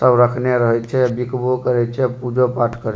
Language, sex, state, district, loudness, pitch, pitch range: Maithili, male, Bihar, Supaul, -18 LUFS, 125 Hz, 120-125 Hz